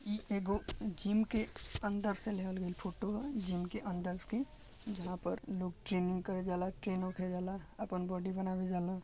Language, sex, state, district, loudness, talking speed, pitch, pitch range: Bhojpuri, male, Bihar, Gopalganj, -39 LUFS, 180 wpm, 190 Hz, 180-210 Hz